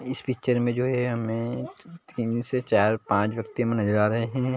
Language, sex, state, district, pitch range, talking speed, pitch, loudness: Hindi, male, Chhattisgarh, Bilaspur, 115-125 Hz, 185 wpm, 120 Hz, -26 LUFS